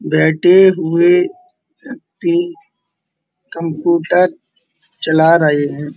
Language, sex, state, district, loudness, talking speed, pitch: Hindi, male, Uttar Pradesh, Muzaffarnagar, -13 LUFS, 70 wpm, 180 Hz